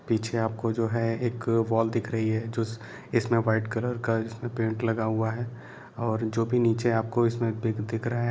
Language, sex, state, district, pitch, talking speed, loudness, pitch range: Hindi, male, Bihar, Saran, 115 Hz, 210 wpm, -27 LUFS, 110-120 Hz